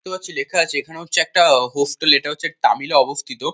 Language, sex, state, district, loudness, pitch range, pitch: Bengali, male, West Bengal, North 24 Parganas, -17 LUFS, 145-185 Hz, 160 Hz